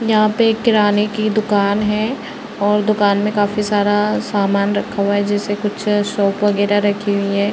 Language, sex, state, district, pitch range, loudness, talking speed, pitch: Hindi, female, Uttar Pradesh, Varanasi, 205-215 Hz, -16 LUFS, 185 wpm, 205 Hz